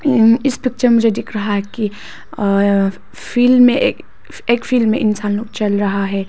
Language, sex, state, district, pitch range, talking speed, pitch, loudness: Hindi, female, Arunachal Pradesh, Papum Pare, 205-245 Hz, 170 wpm, 220 Hz, -15 LUFS